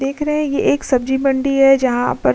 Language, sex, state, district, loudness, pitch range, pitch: Hindi, female, Uttar Pradesh, Budaun, -16 LUFS, 260-275 Hz, 270 Hz